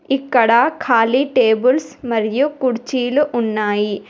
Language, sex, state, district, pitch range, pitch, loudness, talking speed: Telugu, female, Telangana, Hyderabad, 225-275 Hz, 245 Hz, -16 LUFS, 90 wpm